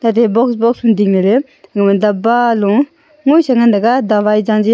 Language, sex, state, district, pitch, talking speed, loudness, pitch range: Wancho, female, Arunachal Pradesh, Longding, 230 Hz, 150 wpm, -12 LUFS, 210-250 Hz